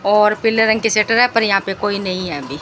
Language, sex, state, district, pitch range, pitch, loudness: Hindi, female, Rajasthan, Bikaner, 195-225 Hz, 210 Hz, -16 LUFS